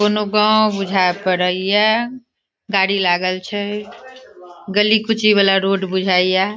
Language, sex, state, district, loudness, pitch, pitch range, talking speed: Maithili, female, Bihar, Sitamarhi, -16 LUFS, 200 Hz, 185-210 Hz, 110 wpm